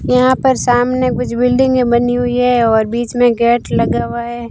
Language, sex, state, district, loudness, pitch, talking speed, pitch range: Hindi, female, Rajasthan, Barmer, -14 LUFS, 245 Hz, 200 wpm, 235-250 Hz